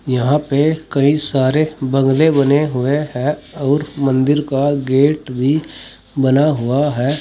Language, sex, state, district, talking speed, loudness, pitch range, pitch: Hindi, male, Uttar Pradesh, Saharanpur, 135 wpm, -16 LUFS, 135-150 Hz, 140 Hz